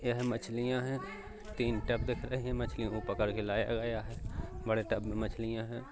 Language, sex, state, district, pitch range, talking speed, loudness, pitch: Hindi, male, Uttar Pradesh, Hamirpur, 110-120 Hz, 205 wpm, -36 LUFS, 115 Hz